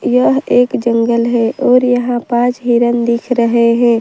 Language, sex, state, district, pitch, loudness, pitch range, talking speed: Hindi, female, Gujarat, Valsad, 235 Hz, -13 LUFS, 235-245 Hz, 165 wpm